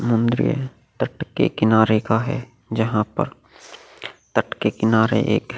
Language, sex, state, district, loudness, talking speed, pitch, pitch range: Hindi, male, Chhattisgarh, Kabirdham, -21 LUFS, 140 wpm, 110 Hz, 110-120 Hz